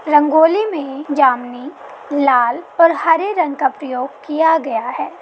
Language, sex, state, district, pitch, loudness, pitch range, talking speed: Hindi, female, Jharkhand, Sahebganj, 295 Hz, -16 LUFS, 275-325 Hz, 140 wpm